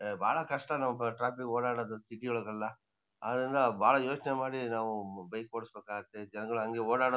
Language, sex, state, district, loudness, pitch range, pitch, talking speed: Kannada, male, Karnataka, Shimoga, -34 LUFS, 110-125 Hz, 115 Hz, 160 wpm